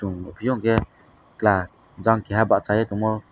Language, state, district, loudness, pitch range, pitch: Kokborok, Tripura, West Tripura, -22 LUFS, 100-115 Hz, 110 Hz